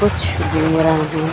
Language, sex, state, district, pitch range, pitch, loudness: Hindi, female, Jharkhand, Sahebganj, 100-160 Hz, 155 Hz, -17 LUFS